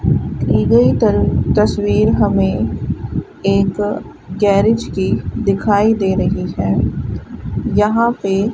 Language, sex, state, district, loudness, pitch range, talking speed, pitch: Hindi, female, Rajasthan, Bikaner, -16 LUFS, 195-215 Hz, 105 wpm, 205 Hz